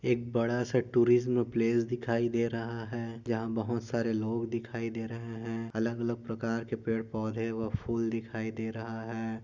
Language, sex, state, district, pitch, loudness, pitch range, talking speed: Hindi, male, Goa, North and South Goa, 115 Hz, -32 LUFS, 115-120 Hz, 185 wpm